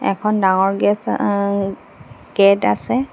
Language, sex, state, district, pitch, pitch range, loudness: Assamese, female, Assam, Hailakandi, 200 Hz, 195-210 Hz, -17 LUFS